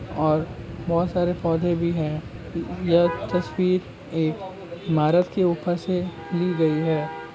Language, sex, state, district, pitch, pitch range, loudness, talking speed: Hindi, male, Maharashtra, Nagpur, 170 Hz, 155-175 Hz, -24 LUFS, 130 wpm